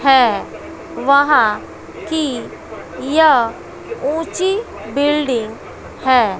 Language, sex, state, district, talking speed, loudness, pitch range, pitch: Hindi, female, Bihar, West Champaran, 65 wpm, -16 LUFS, 250-320 Hz, 285 Hz